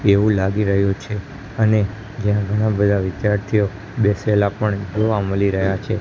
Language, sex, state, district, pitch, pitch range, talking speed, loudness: Gujarati, male, Gujarat, Gandhinagar, 105 Hz, 100-105 Hz, 140 wpm, -19 LUFS